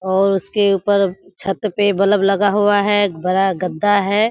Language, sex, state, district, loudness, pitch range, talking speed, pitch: Hindi, female, Bihar, Kishanganj, -16 LUFS, 195-205 Hz, 180 wpm, 200 Hz